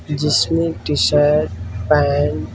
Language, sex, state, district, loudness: Hindi, male, Uttar Pradesh, Varanasi, -17 LUFS